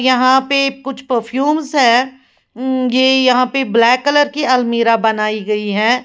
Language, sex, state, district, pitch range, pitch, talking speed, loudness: Hindi, female, Uttar Pradesh, Lalitpur, 235-265 Hz, 255 Hz, 160 wpm, -14 LUFS